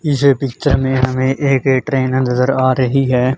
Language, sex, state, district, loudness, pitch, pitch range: Hindi, male, Haryana, Charkhi Dadri, -15 LUFS, 130 Hz, 130-135 Hz